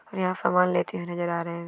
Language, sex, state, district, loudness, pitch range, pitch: Hindi, female, Maharashtra, Nagpur, -26 LUFS, 170-180 Hz, 175 Hz